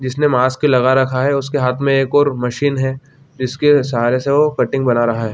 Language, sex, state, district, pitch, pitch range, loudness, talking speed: Hindi, male, Chhattisgarh, Bilaspur, 135 Hz, 125-140 Hz, -15 LUFS, 225 wpm